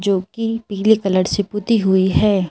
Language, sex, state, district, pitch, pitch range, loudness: Hindi, female, Madhya Pradesh, Bhopal, 200 Hz, 190-220 Hz, -17 LUFS